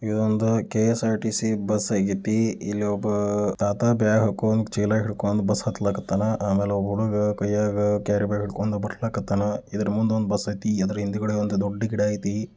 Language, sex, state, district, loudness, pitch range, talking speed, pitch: Kannada, male, Karnataka, Dakshina Kannada, -24 LUFS, 100-110 Hz, 160 wpm, 105 Hz